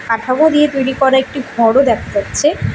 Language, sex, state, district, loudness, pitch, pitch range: Bengali, female, West Bengal, Alipurduar, -13 LUFS, 265 Hz, 235-295 Hz